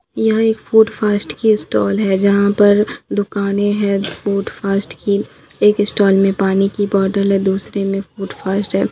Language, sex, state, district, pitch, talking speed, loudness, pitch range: Hindi, female, Bihar, Katihar, 200 Hz, 175 wpm, -16 LUFS, 195-205 Hz